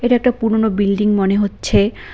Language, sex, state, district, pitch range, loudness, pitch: Bengali, female, West Bengal, Cooch Behar, 200-225 Hz, -16 LUFS, 210 Hz